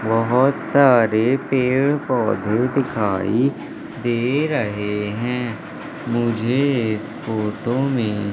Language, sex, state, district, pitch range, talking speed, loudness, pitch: Hindi, male, Madhya Pradesh, Katni, 110-130 Hz, 85 wpm, -20 LUFS, 120 Hz